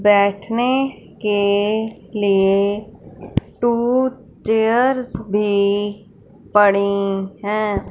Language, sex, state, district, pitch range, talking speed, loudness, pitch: Hindi, female, Punjab, Fazilka, 200-225 Hz, 60 wpm, -18 LUFS, 205 Hz